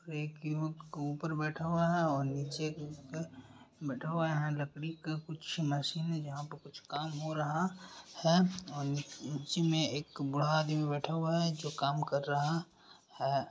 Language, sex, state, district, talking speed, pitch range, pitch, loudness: Hindi, male, Bihar, Bhagalpur, 180 wpm, 145-160 Hz, 155 Hz, -35 LUFS